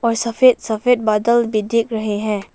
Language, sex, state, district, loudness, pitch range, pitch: Hindi, female, Arunachal Pradesh, Lower Dibang Valley, -17 LUFS, 215-235 Hz, 225 Hz